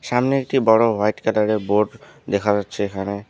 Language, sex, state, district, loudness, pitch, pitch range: Bengali, male, West Bengal, Alipurduar, -20 LUFS, 105 Hz, 100-115 Hz